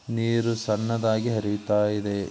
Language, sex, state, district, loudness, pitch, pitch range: Kannada, male, Karnataka, Belgaum, -25 LUFS, 110 Hz, 105-115 Hz